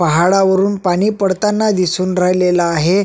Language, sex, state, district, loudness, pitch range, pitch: Marathi, male, Maharashtra, Sindhudurg, -14 LUFS, 180-195 Hz, 185 Hz